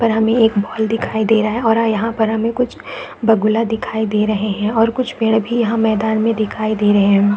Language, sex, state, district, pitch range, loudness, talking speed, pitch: Hindi, female, Chhattisgarh, Bilaspur, 215-225 Hz, -16 LUFS, 235 wpm, 220 Hz